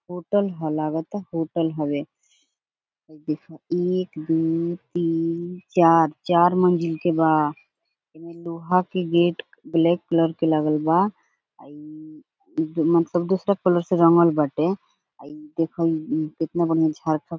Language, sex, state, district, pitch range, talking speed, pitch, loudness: Bhojpuri, female, Bihar, Gopalganj, 155-175 Hz, 115 wpm, 165 Hz, -22 LUFS